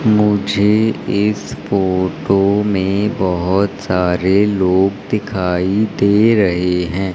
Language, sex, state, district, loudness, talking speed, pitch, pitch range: Hindi, female, Madhya Pradesh, Umaria, -15 LUFS, 90 wpm, 100 Hz, 95-105 Hz